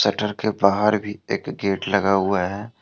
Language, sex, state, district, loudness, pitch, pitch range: Hindi, male, Jharkhand, Deoghar, -21 LUFS, 100 Hz, 100-105 Hz